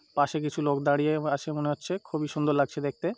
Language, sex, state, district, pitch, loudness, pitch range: Bengali, male, West Bengal, North 24 Parganas, 150 Hz, -28 LUFS, 145-155 Hz